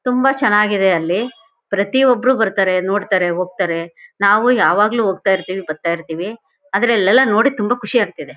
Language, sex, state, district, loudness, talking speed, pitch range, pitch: Kannada, female, Karnataka, Shimoga, -16 LUFS, 145 wpm, 185-245 Hz, 205 Hz